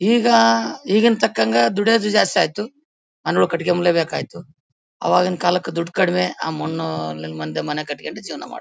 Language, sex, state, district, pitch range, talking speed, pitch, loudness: Kannada, male, Karnataka, Bellary, 135-200 Hz, 140 wpm, 170 Hz, -19 LUFS